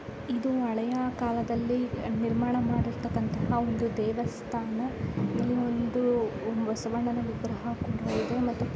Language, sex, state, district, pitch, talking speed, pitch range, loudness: Kannada, female, Karnataka, Dharwad, 235 Hz, 105 wpm, 230-245 Hz, -30 LUFS